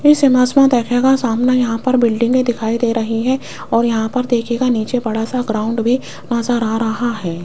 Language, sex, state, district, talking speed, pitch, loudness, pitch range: Hindi, female, Rajasthan, Jaipur, 200 wpm, 235 Hz, -16 LUFS, 225-250 Hz